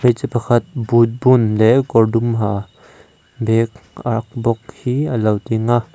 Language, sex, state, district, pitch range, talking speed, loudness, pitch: Mizo, male, Mizoram, Aizawl, 110-120 Hz, 160 wpm, -17 LUFS, 115 Hz